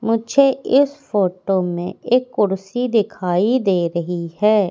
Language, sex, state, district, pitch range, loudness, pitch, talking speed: Hindi, female, Madhya Pradesh, Katni, 180-245 Hz, -18 LUFS, 210 Hz, 125 wpm